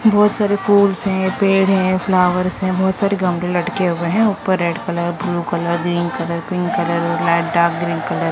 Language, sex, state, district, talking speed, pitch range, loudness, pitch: Hindi, female, Maharashtra, Mumbai Suburban, 200 wpm, 170-195 Hz, -17 LUFS, 180 Hz